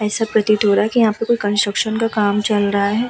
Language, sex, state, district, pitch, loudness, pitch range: Hindi, female, Uttar Pradesh, Hamirpur, 210 Hz, -17 LUFS, 205-225 Hz